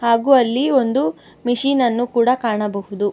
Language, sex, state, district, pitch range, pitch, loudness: Kannada, female, Karnataka, Bangalore, 210-255 Hz, 240 Hz, -17 LUFS